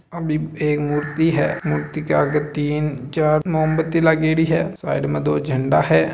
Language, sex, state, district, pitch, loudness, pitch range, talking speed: Marwari, male, Rajasthan, Nagaur, 150 Hz, -19 LUFS, 140-160 Hz, 165 wpm